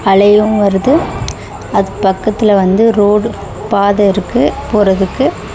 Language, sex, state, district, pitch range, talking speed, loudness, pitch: Tamil, female, Tamil Nadu, Chennai, 195-215 Hz, 95 wpm, -12 LUFS, 205 Hz